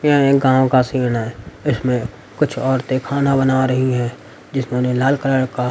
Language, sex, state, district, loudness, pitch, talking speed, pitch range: Hindi, male, Haryana, Rohtak, -18 LUFS, 130 Hz, 190 wpm, 125-135 Hz